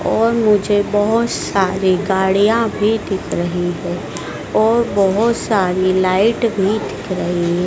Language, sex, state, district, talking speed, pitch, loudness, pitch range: Hindi, female, Madhya Pradesh, Dhar, 125 wpm, 195 Hz, -16 LUFS, 180-215 Hz